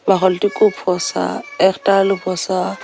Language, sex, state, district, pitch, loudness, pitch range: Bengali, female, Tripura, Unakoti, 190 Hz, -17 LUFS, 185-195 Hz